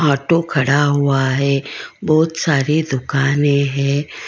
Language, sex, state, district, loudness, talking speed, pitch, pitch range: Hindi, female, Karnataka, Bangalore, -16 LUFS, 110 wpm, 140 Hz, 140-155 Hz